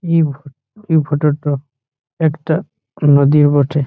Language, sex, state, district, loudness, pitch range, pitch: Bengali, male, West Bengal, Malda, -15 LUFS, 140-160 Hz, 145 Hz